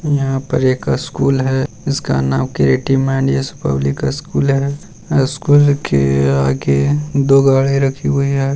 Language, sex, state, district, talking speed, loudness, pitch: Hindi, male, Bihar, Jamui, 140 wpm, -15 LUFS, 135 Hz